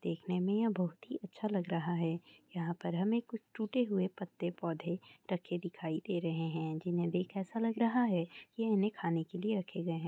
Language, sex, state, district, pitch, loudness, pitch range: Hindi, female, Andhra Pradesh, Chittoor, 180 Hz, -36 LUFS, 170-210 Hz